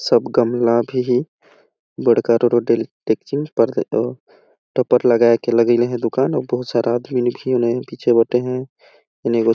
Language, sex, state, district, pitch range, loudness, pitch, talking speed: Awadhi, male, Chhattisgarh, Balrampur, 115-125 Hz, -18 LUFS, 120 Hz, 140 wpm